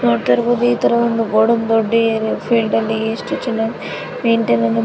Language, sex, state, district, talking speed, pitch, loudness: Kannada, female, Karnataka, Dharwad, 135 wpm, 225 Hz, -16 LUFS